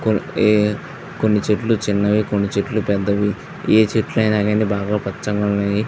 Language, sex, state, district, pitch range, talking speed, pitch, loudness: Telugu, male, Andhra Pradesh, Visakhapatnam, 100-110 Hz, 155 wpm, 105 Hz, -18 LUFS